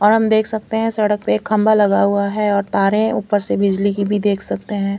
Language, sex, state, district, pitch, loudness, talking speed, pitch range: Hindi, female, Chandigarh, Chandigarh, 205 Hz, -17 LUFS, 250 wpm, 200-215 Hz